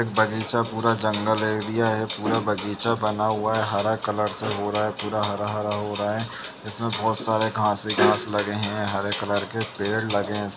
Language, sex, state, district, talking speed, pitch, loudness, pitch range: Hindi, male, Uttar Pradesh, Jalaun, 200 wpm, 105 Hz, -24 LUFS, 105-110 Hz